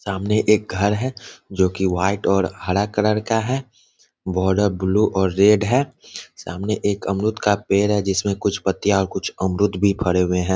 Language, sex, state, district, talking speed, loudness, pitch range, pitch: Hindi, male, Bihar, Muzaffarpur, 195 wpm, -20 LUFS, 95-105 Hz, 100 Hz